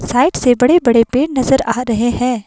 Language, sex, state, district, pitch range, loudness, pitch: Hindi, female, Himachal Pradesh, Shimla, 235-260 Hz, -13 LUFS, 250 Hz